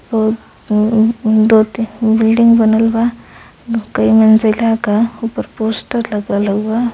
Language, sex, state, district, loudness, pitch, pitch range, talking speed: Hindi, female, Uttar Pradesh, Varanasi, -13 LUFS, 220 Hz, 215-230 Hz, 120 wpm